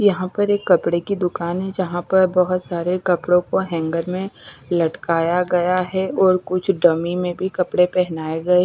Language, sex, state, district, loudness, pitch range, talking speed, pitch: Hindi, female, Chandigarh, Chandigarh, -19 LUFS, 175-185 Hz, 185 wpm, 180 Hz